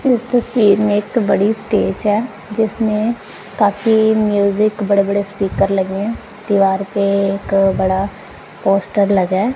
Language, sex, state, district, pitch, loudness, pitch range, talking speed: Hindi, female, Punjab, Kapurthala, 205 Hz, -16 LUFS, 195-220 Hz, 140 wpm